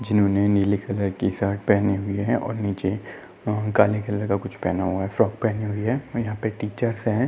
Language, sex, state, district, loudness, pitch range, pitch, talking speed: Hindi, male, Uttar Pradesh, Muzaffarnagar, -24 LUFS, 100-110 Hz, 105 Hz, 215 wpm